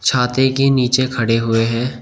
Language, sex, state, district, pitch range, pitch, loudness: Hindi, male, Uttar Pradesh, Shamli, 115-130 Hz, 125 Hz, -16 LUFS